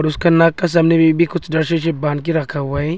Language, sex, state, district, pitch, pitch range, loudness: Hindi, male, Arunachal Pradesh, Longding, 165 Hz, 155-165 Hz, -16 LUFS